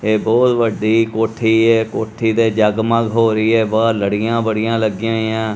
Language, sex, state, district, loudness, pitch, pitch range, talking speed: Punjabi, male, Punjab, Kapurthala, -16 LUFS, 110 Hz, 110-115 Hz, 195 wpm